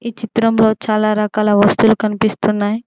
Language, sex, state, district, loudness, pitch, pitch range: Telugu, female, Telangana, Mahabubabad, -15 LUFS, 215 Hz, 210-225 Hz